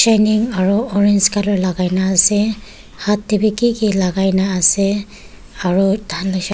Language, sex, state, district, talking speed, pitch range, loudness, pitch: Nagamese, female, Nagaland, Dimapur, 110 wpm, 190-210 Hz, -15 LUFS, 200 Hz